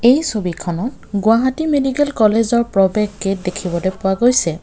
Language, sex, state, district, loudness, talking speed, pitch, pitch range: Assamese, male, Assam, Kamrup Metropolitan, -17 LUFS, 130 wpm, 210 Hz, 190-245 Hz